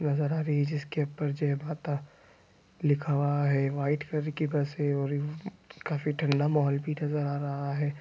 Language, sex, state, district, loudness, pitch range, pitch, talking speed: Hindi, male, Bihar, East Champaran, -30 LUFS, 145-150 Hz, 145 Hz, 185 wpm